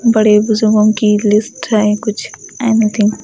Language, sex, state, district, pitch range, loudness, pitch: Hindi, female, Delhi, New Delhi, 210-220 Hz, -13 LUFS, 215 Hz